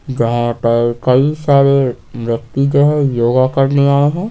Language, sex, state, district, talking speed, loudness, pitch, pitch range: Hindi, male, Bihar, Patna, 155 wpm, -13 LUFS, 135 Hz, 120-140 Hz